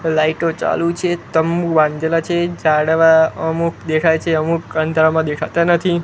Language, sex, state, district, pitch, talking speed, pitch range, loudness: Gujarati, male, Gujarat, Gandhinagar, 160 Hz, 140 wpm, 160-170 Hz, -16 LUFS